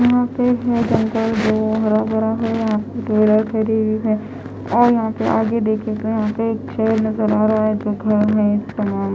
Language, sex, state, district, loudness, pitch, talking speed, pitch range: Hindi, female, Odisha, Khordha, -18 LUFS, 220 Hz, 175 wpm, 215-225 Hz